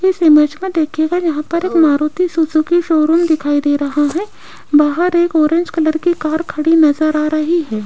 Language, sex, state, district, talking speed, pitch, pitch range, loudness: Hindi, female, Rajasthan, Jaipur, 190 wpm, 315 Hz, 300-345 Hz, -14 LUFS